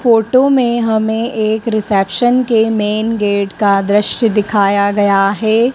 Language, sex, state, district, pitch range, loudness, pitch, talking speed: Hindi, male, Madhya Pradesh, Dhar, 205-230 Hz, -13 LUFS, 220 Hz, 135 wpm